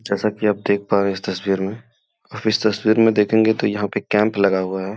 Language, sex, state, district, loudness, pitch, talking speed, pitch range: Hindi, male, Uttar Pradesh, Gorakhpur, -19 LUFS, 105 Hz, 255 wpm, 100-110 Hz